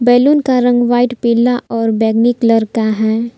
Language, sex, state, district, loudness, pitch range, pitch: Hindi, female, Jharkhand, Palamu, -13 LUFS, 225-245 Hz, 235 Hz